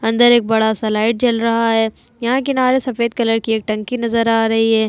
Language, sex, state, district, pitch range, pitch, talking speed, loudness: Hindi, female, Uttar Pradesh, Jalaun, 225-240 Hz, 230 Hz, 235 wpm, -16 LUFS